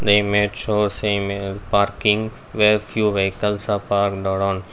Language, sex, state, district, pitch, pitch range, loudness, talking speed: English, male, Karnataka, Bangalore, 100 Hz, 100-105 Hz, -20 LUFS, 140 wpm